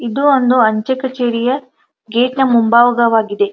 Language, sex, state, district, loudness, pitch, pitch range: Kannada, female, Karnataka, Dharwad, -14 LUFS, 245 Hz, 230-260 Hz